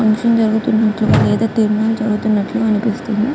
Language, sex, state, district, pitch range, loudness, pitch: Telugu, female, Andhra Pradesh, Guntur, 215-225 Hz, -15 LUFS, 220 Hz